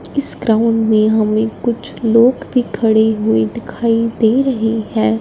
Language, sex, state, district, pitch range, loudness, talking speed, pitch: Hindi, female, Punjab, Fazilka, 220-230 Hz, -15 LUFS, 150 wpm, 225 Hz